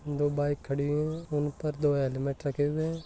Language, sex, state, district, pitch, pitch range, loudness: Hindi, male, Rajasthan, Nagaur, 145 Hz, 140-150 Hz, -30 LUFS